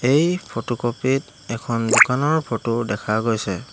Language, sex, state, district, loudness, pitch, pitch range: Assamese, male, Assam, Hailakandi, -20 LUFS, 120 Hz, 115-135 Hz